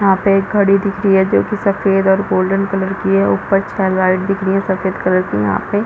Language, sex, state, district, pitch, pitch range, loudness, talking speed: Hindi, female, Chhattisgarh, Rajnandgaon, 195 Hz, 190-195 Hz, -15 LUFS, 255 wpm